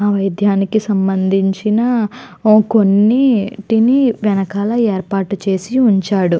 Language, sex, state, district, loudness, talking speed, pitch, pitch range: Telugu, female, Andhra Pradesh, Chittoor, -14 LUFS, 75 wpm, 205 Hz, 195-225 Hz